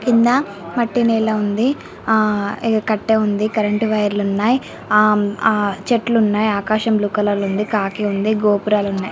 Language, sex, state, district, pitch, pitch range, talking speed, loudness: Telugu, female, Andhra Pradesh, Srikakulam, 215 Hz, 205-225 Hz, 145 wpm, -17 LUFS